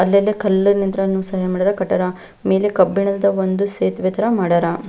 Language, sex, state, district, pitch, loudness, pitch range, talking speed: Kannada, female, Karnataka, Belgaum, 195 Hz, -18 LUFS, 185-200 Hz, 145 wpm